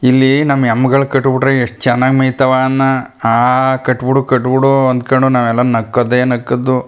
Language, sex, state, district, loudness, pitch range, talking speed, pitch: Kannada, male, Karnataka, Chamarajanagar, -12 LUFS, 125-130 Hz, 155 wpm, 130 Hz